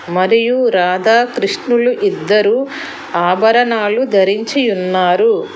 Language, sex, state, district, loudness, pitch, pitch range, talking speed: Telugu, female, Telangana, Hyderabad, -13 LUFS, 230 Hz, 190-265 Hz, 55 wpm